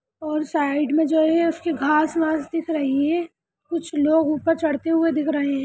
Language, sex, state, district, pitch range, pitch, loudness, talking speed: Hindi, female, Bihar, Lakhisarai, 295-330 Hz, 315 Hz, -21 LUFS, 190 wpm